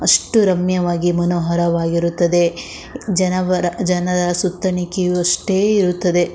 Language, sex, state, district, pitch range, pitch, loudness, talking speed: Kannada, female, Karnataka, Shimoga, 175-185 Hz, 180 Hz, -17 LUFS, 85 wpm